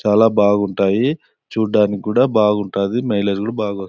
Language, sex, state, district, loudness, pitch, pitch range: Telugu, male, Andhra Pradesh, Anantapur, -17 LUFS, 105 Hz, 100-110 Hz